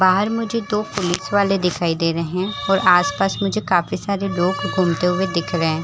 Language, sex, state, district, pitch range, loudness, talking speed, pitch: Hindi, female, Chhattisgarh, Rajnandgaon, 175-195 Hz, -19 LUFS, 205 wpm, 185 Hz